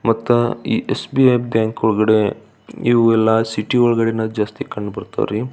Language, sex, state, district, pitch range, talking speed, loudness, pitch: Kannada, male, Karnataka, Belgaum, 110-120 Hz, 120 wpm, -17 LUFS, 115 Hz